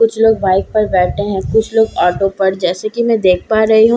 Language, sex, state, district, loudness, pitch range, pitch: Hindi, female, Bihar, Katihar, -14 LUFS, 185-220 Hz, 210 Hz